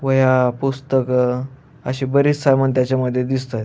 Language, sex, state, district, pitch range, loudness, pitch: Marathi, male, Maharashtra, Aurangabad, 125-135 Hz, -18 LUFS, 130 Hz